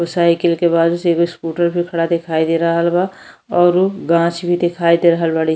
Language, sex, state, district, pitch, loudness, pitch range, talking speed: Bhojpuri, female, Uttar Pradesh, Deoria, 170 Hz, -16 LUFS, 170-175 Hz, 205 wpm